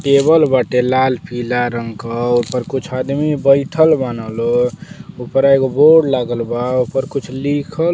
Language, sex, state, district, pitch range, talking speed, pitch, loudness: Bhojpuri, male, Uttar Pradesh, Deoria, 120-145 Hz, 160 wpm, 130 Hz, -15 LUFS